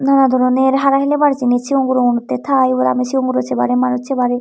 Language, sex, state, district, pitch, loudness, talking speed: Chakma, female, Tripura, Unakoti, 255 Hz, -15 LUFS, 190 wpm